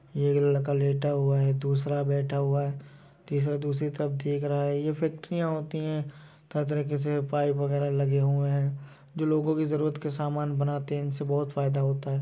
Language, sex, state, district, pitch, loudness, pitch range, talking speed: Hindi, male, Uttar Pradesh, Jyotiba Phule Nagar, 145 Hz, -28 LUFS, 140-150 Hz, 200 wpm